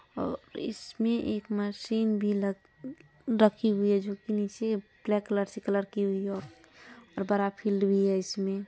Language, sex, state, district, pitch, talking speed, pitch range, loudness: Hindi, female, Bihar, Madhepura, 205 Hz, 165 wpm, 195-215 Hz, -30 LUFS